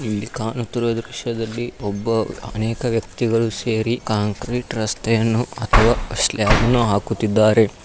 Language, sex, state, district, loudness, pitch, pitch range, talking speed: Kannada, male, Karnataka, Dharwad, -20 LUFS, 115 Hz, 110-120 Hz, 100 wpm